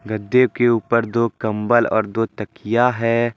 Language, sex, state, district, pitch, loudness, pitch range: Hindi, male, Jharkhand, Deoghar, 115 Hz, -18 LUFS, 110-120 Hz